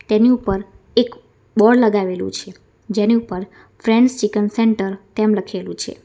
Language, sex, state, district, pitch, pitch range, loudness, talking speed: Gujarati, female, Gujarat, Valsad, 215 Hz, 195-230 Hz, -18 LUFS, 140 wpm